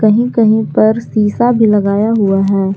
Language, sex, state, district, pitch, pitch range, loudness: Hindi, female, Jharkhand, Garhwa, 215 Hz, 200-225 Hz, -12 LUFS